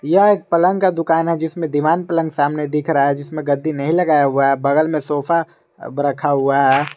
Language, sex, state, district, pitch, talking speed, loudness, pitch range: Hindi, male, Jharkhand, Garhwa, 155 Hz, 215 wpm, -17 LUFS, 145-165 Hz